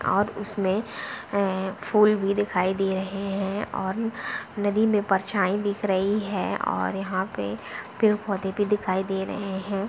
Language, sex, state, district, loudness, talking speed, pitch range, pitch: Hindi, female, Uttar Pradesh, Jalaun, -26 LUFS, 160 wpm, 190-205 Hz, 200 Hz